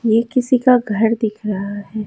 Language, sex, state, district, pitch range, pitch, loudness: Hindi, female, Haryana, Jhajjar, 210-240 Hz, 220 Hz, -17 LUFS